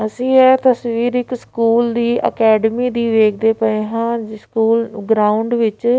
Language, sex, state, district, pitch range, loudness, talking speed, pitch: Punjabi, female, Punjab, Pathankot, 220-240 Hz, -15 LUFS, 150 wpm, 230 Hz